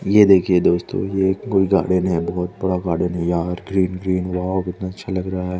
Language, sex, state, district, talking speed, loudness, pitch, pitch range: Hindi, male, Chandigarh, Chandigarh, 225 wpm, -19 LUFS, 95 Hz, 90-95 Hz